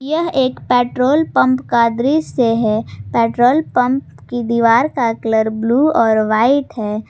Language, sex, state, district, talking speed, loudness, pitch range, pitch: Hindi, female, Jharkhand, Ranchi, 145 wpm, -15 LUFS, 225-265 Hz, 240 Hz